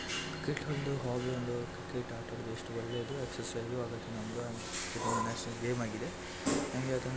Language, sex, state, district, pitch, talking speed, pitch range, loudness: Kannada, male, Karnataka, Shimoga, 120 Hz, 85 wpm, 115-125 Hz, -37 LUFS